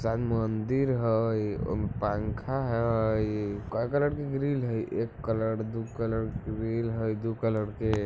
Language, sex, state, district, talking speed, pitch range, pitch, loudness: Maithili, male, Bihar, Muzaffarpur, 155 wpm, 110-115 Hz, 115 Hz, -30 LUFS